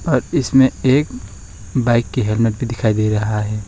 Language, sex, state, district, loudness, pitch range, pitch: Hindi, male, West Bengal, Alipurduar, -17 LUFS, 105-125 Hz, 110 Hz